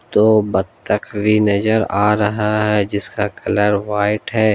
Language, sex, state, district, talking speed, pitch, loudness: Hindi, male, Jharkhand, Ranchi, 145 wpm, 105 Hz, -17 LUFS